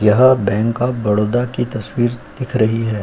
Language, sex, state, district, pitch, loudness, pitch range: Hindi, male, Uttar Pradesh, Jyotiba Phule Nagar, 115 Hz, -17 LUFS, 105-125 Hz